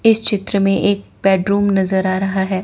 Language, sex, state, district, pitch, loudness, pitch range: Hindi, female, Chandigarh, Chandigarh, 195 Hz, -16 LUFS, 190-200 Hz